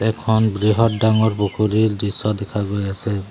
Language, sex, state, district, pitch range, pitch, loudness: Assamese, male, Assam, Sonitpur, 100-110 Hz, 105 Hz, -19 LUFS